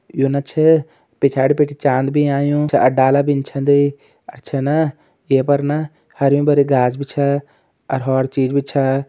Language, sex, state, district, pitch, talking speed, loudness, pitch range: Garhwali, male, Uttarakhand, Uttarkashi, 140 Hz, 170 wpm, -17 LUFS, 135-145 Hz